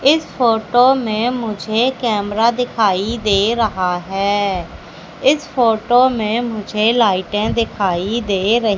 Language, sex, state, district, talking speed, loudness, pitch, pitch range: Hindi, female, Madhya Pradesh, Katni, 115 wpm, -16 LUFS, 220 Hz, 200-240 Hz